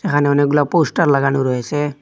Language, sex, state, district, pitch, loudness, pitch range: Bengali, male, Assam, Hailakandi, 145 Hz, -16 LUFS, 135-145 Hz